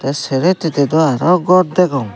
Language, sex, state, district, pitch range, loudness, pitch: Chakma, male, Tripura, Dhalai, 140-180 Hz, -14 LUFS, 160 Hz